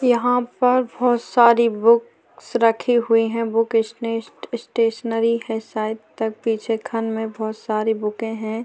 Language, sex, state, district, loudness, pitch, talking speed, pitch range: Hindi, female, Maharashtra, Chandrapur, -20 LUFS, 230 Hz, 145 wpm, 225-235 Hz